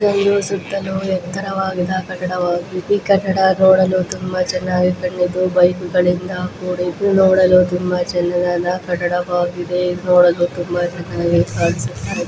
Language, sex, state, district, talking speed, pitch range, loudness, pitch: Kannada, female, Karnataka, Dharwad, 105 wpm, 180-190 Hz, -17 LUFS, 180 Hz